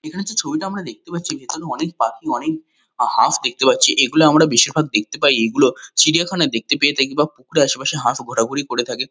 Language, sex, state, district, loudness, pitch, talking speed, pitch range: Bengali, male, West Bengal, Kolkata, -17 LUFS, 155 Hz, 200 wpm, 135-195 Hz